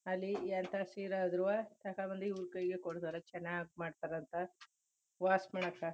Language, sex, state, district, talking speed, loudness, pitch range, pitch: Kannada, female, Karnataka, Chamarajanagar, 140 wpm, -40 LUFS, 175-195 Hz, 185 Hz